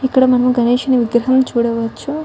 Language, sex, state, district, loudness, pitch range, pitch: Telugu, female, Telangana, Karimnagar, -15 LUFS, 235-260 Hz, 250 Hz